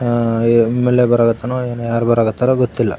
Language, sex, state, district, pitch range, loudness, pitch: Kannada, male, Karnataka, Raichur, 115-125 Hz, -15 LUFS, 120 Hz